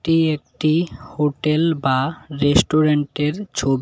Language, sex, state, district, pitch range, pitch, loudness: Bengali, male, Tripura, West Tripura, 140-160 Hz, 150 Hz, -19 LUFS